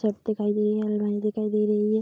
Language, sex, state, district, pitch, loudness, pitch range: Hindi, female, Uttar Pradesh, Budaun, 210 Hz, -25 LUFS, 210-215 Hz